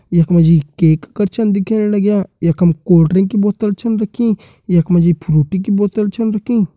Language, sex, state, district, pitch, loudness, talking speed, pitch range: Hindi, male, Uttarakhand, Uttarkashi, 195 Hz, -14 LUFS, 205 wpm, 170-210 Hz